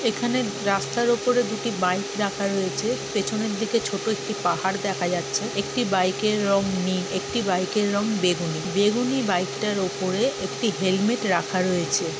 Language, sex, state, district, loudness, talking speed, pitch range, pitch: Bengali, female, West Bengal, Jhargram, -24 LUFS, 145 wpm, 185-215 Hz, 200 Hz